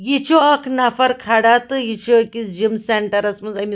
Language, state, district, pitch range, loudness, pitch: Kashmiri, Punjab, Kapurthala, 215-255 Hz, -16 LUFS, 230 Hz